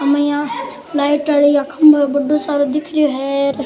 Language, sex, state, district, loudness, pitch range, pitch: Rajasthani, male, Rajasthan, Churu, -15 LUFS, 285-300 Hz, 290 Hz